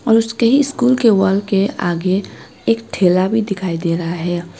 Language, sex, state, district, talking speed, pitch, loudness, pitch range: Hindi, female, West Bengal, Alipurduar, 170 wpm, 195 Hz, -16 LUFS, 175-225 Hz